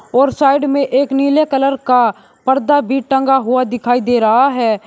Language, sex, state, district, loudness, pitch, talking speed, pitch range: Hindi, male, Uttar Pradesh, Shamli, -14 LUFS, 265 Hz, 185 wpm, 245-275 Hz